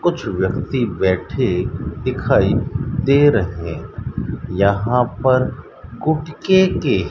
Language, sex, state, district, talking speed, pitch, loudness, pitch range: Hindi, male, Rajasthan, Bikaner, 95 wpm, 130 Hz, -18 LUFS, 100-140 Hz